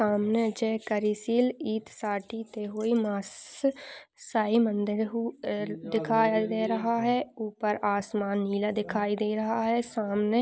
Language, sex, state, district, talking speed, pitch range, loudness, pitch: Hindi, female, Maharashtra, Aurangabad, 70 wpm, 210-230 Hz, -29 LUFS, 220 Hz